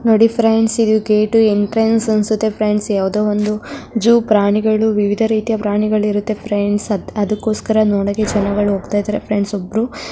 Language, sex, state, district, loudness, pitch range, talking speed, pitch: Kannada, female, Karnataka, Mysore, -16 LUFS, 205-220 Hz, 140 wpm, 215 Hz